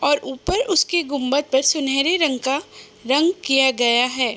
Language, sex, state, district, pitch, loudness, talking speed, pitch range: Hindi, female, Uttar Pradesh, Budaun, 275 Hz, -19 LUFS, 180 wpm, 260-315 Hz